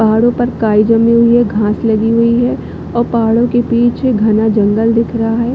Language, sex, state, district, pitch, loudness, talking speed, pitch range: Hindi, female, Chhattisgarh, Bilaspur, 230 Hz, -12 LUFS, 205 wpm, 220-235 Hz